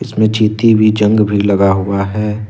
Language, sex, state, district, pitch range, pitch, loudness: Hindi, male, Jharkhand, Ranchi, 100-110 Hz, 105 Hz, -12 LUFS